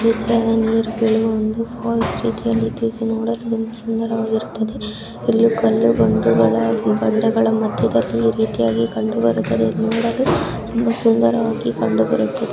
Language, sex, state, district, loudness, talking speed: Kannada, female, Karnataka, Gulbarga, -18 LUFS, 75 wpm